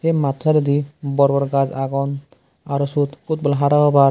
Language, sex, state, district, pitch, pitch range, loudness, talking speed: Chakma, male, Tripura, West Tripura, 140 Hz, 140-145 Hz, -19 LUFS, 160 wpm